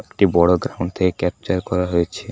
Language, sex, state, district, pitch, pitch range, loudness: Bengali, male, West Bengal, Paschim Medinipur, 90 Hz, 85-95 Hz, -19 LUFS